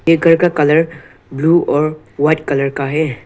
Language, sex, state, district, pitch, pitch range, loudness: Hindi, male, Arunachal Pradesh, Lower Dibang Valley, 155 Hz, 140-165 Hz, -14 LUFS